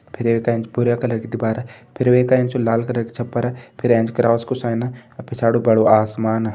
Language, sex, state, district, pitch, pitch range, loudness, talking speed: Hindi, male, Uttarakhand, Tehri Garhwal, 120 Hz, 115-125 Hz, -19 LUFS, 210 wpm